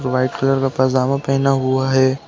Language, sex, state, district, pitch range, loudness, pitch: Hindi, male, Uttar Pradesh, Deoria, 130-135 Hz, -17 LUFS, 130 Hz